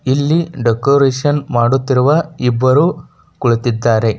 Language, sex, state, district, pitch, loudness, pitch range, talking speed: Kannada, male, Karnataka, Bijapur, 130 Hz, -14 LUFS, 120-145 Hz, 70 wpm